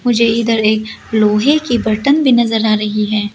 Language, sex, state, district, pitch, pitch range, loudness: Hindi, female, Arunachal Pradesh, Lower Dibang Valley, 225 Hz, 215-240 Hz, -13 LUFS